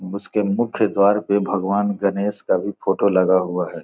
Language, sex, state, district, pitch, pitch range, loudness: Hindi, male, Bihar, Gopalganj, 100 Hz, 95-100 Hz, -20 LUFS